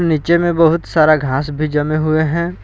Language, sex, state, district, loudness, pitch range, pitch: Hindi, male, Jharkhand, Palamu, -15 LUFS, 155-170 Hz, 155 Hz